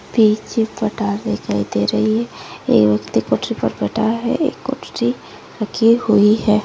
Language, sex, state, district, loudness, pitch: Hindi, female, Rajasthan, Nagaur, -18 LUFS, 210 Hz